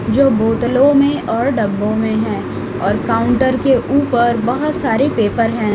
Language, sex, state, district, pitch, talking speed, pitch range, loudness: Hindi, female, Chhattisgarh, Raipur, 240 Hz, 155 wpm, 220-275 Hz, -15 LUFS